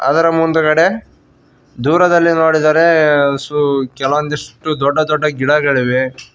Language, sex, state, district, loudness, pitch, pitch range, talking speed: Kannada, male, Karnataka, Koppal, -13 LUFS, 150 Hz, 140-160 Hz, 65 wpm